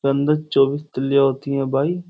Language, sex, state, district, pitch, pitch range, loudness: Hindi, male, Uttar Pradesh, Jyotiba Phule Nagar, 140 Hz, 135-150 Hz, -19 LUFS